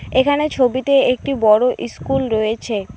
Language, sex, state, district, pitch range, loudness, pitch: Bengali, female, West Bengal, Cooch Behar, 215-265 Hz, -17 LUFS, 250 Hz